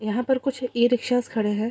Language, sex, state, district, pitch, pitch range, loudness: Hindi, female, Bihar, East Champaran, 245 Hz, 220-250 Hz, -24 LUFS